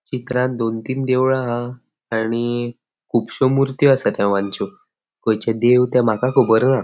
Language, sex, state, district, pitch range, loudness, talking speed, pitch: Konkani, male, Goa, North and South Goa, 115-130 Hz, -19 LUFS, 140 wpm, 120 Hz